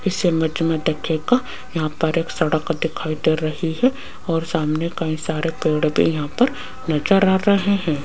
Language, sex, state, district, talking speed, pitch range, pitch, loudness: Hindi, female, Rajasthan, Jaipur, 180 wpm, 155-185 Hz, 160 Hz, -20 LUFS